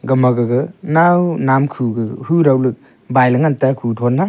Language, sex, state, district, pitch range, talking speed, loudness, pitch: Wancho, male, Arunachal Pradesh, Longding, 125-155 Hz, 195 wpm, -15 LUFS, 130 Hz